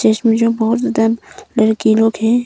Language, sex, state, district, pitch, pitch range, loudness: Hindi, female, Arunachal Pradesh, Longding, 225 Hz, 220-230 Hz, -15 LUFS